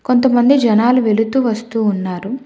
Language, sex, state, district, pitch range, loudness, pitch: Telugu, female, Telangana, Hyderabad, 220-255 Hz, -14 LUFS, 235 Hz